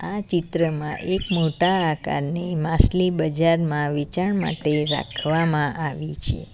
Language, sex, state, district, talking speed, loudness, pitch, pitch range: Gujarati, female, Gujarat, Valsad, 110 wpm, -23 LUFS, 160 Hz, 150-175 Hz